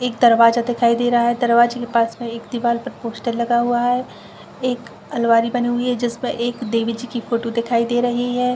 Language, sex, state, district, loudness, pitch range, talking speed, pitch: Hindi, female, Jharkhand, Jamtara, -19 LUFS, 235-245 Hz, 225 wpm, 240 Hz